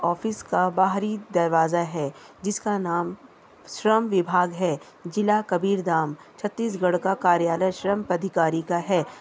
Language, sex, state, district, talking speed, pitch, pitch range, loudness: Hindi, female, Chhattisgarh, Kabirdham, 125 wpm, 180 Hz, 170-205 Hz, -24 LUFS